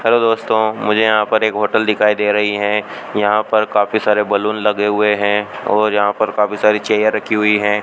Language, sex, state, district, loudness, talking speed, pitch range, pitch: Hindi, male, Rajasthan, Bikaner, -15 LUFS, 215 wpm, 105-110 Hz, 105 Hz